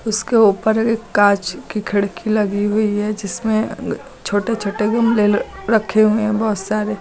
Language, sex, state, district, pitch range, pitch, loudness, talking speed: Hindi, female, Uttar Pradesh, Lucknow, 205-220 Hz, 215 Hz, -18 LUFS, 155 wpm